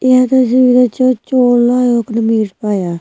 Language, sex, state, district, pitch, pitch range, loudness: Hindi, female, Himachal Pradesh, Shimla, 245 Hz, 225-255 Hz, -12 LUFS